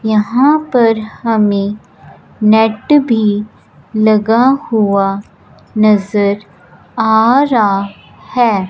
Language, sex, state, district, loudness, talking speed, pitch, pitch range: Hindi, male, Punjab, Fazilka, -12 LUFS, 75 wpm, 215 Hz, 205-230 Hz